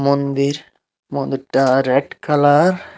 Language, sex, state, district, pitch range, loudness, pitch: Bengali, male, Tripura, Unakoti, 135-145 Hz, -17 LUFS, 140 Hz